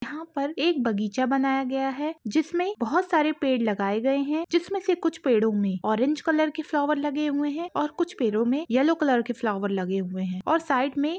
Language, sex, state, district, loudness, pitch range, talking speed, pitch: Hindi, female, Jharkhand, Sahebganj, -25 LUFS, 235-315 Hz, 210 wpm, 280 Hz